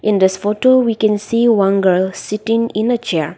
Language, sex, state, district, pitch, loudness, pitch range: English, female, Nagaland, Dimapur, 210 Hz, -15 LUFS, 190-230 Hz